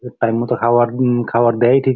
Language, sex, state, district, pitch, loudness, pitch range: Bengali, male, West Bengal, Jalpaiguri, 120 Hz, -16 LUFS, 120-125 Hz